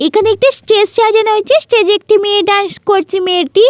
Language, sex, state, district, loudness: Bengali, female, West Bengal, Jalpaiguri, -11 LUFS